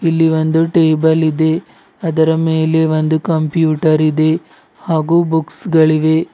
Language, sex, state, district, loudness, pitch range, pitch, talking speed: Kannada, male, Karnataka, Bidar, -14 LUFS, 155-165 Hz, 160 Hz, 115 wpm